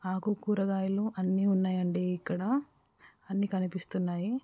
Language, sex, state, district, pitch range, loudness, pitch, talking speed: Telugu, female, Andhra Pradesh, Guntur, 185-205 Hz, -31 LUFS, 190 Hz, 95 wpm